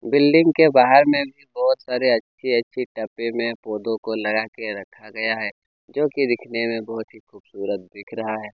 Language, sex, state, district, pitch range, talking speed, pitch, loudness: Hindi, male, Chhattisgarh, Kabirdham, 110-135 Hz, 195 wpm, 115 Hz, -21 LUFS